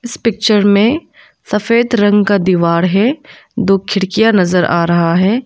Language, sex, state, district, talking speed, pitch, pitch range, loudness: Hindi, female, Arunachal Pradesh, Lower Dibang Valley, 155 wpm, 205 Hz, 185-230 Hz, -12 LUFS